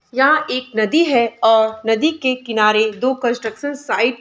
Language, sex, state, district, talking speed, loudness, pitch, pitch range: Hindi, female, Uttar Pradesh, Budaun, 170 wpm, -17 LUFS, 240 Hz, 225-265 Hz